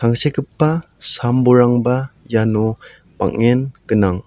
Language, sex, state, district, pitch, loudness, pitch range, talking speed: Garo, male, Meghalaya, South Garo Hills, 120 Hz, -16 LUFS, 115-135 Hz, 85 wpm